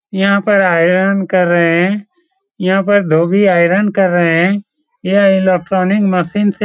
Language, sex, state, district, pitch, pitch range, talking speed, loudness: Hindi, male, Bihar, Supaul, 195 Hz, 180-205 Hz, 160 wpm, -12 LUFS